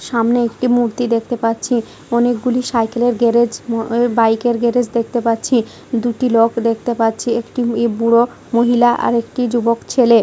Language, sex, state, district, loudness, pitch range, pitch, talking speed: Bengali, female, West Bengal, Jhargram, -16 LUFS, 230-240 Hz, 235 Hz, 140 wpm